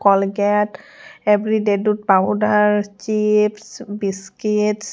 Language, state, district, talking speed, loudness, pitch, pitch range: Kokborok, Tripura, West Tripura, 75 wpm, -18 LUFS, 210 Hz, 205-215 Hz